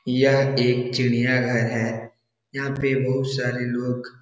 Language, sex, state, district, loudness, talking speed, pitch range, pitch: Hindi, male, Bihar, Darbhanga, -22 LUFS, 140 wpm, 120-135 Hz, 125 Hz